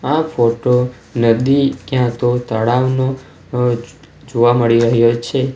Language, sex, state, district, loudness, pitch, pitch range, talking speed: Gujarati, male, Gujarat, Valsad, -15 LUFS, 125 Hz, 120-130 Hz, 110 wpm